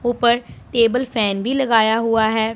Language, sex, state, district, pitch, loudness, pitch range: Hindi, female, Punjab, Pathankot, 230 Hz, -18 LUFS, 220-240 Hz